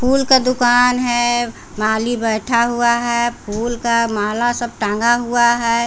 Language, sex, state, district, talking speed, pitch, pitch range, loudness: Hindi, female, Bihar, Patna, 155 wpm, 235 Hz, 230-240 Hz, -16 LUFS